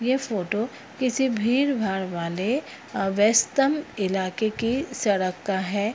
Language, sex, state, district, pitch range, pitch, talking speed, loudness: Hindi, female, Bihar, Purnia, 195-255 Hz, 215 Hz, 120 wpm, -24 LUFS